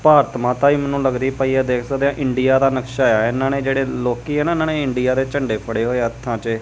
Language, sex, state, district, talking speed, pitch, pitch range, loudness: Punjabi, male, Punjab, Kapurthala, 270 wpm, 130 Hz, 125-140 Hz, -18 LUFS